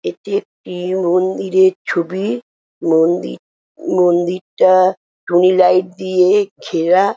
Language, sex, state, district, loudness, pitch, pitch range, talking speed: Bengali, female, West Bengal, Jhargram, -15 LUFS, 185 Hz, 175-190 Hz, 90 wpm